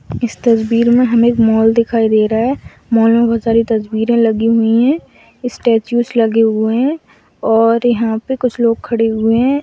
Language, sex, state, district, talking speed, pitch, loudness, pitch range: Hindi, female, Bihar, Madhepura, 185 wpm, 230 Hz, -13 LUFS, 225-240 Hz